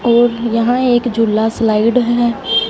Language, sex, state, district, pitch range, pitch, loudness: Hindi, female, Punjab, Fazilka, 225-240 Hz, 235 Hz, -14 LUFS